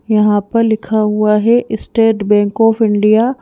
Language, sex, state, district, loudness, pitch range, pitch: Hindi, female, Madhya Pradesh, Bhopal, -13 LUFS, 210-225 Hz, 220 Hz